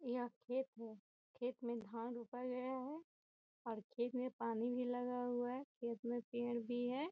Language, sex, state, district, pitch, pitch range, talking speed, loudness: Hindi, female, Bihar, Gopalganj, 245 Hz, 235-250 Hz, 195 wpm, -45 LUFS